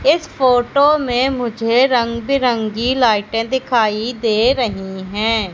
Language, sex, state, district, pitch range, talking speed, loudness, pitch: Hindi, female, Madhya Pradesh, Katni, 225-260 Hz, 120 wpm, -16 LUFS, 240 Hz